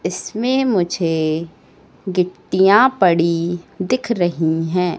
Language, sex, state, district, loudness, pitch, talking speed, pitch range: Hindi, female, Madhya Pradesh, Katni, -17 LUFS, 180 Hz, 85 wpm, 170-200 Hz